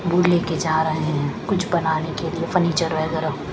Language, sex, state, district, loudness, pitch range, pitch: Hindi, female, Punjab, Pathankot, -21 LUFS, 160-175 Hz, 165 Hz